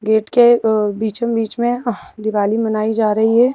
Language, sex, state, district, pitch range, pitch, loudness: Hindi, female, Madhya Pradesh, Bhopal, 215-235 Hz, 220 Hz, -16 LUFS